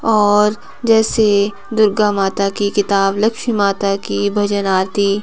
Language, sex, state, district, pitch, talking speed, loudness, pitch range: Hindi, female, Himachal Pradesh, Shimla, 205 Hz, 125 wpm, -15 LUFS, 200-215 Hz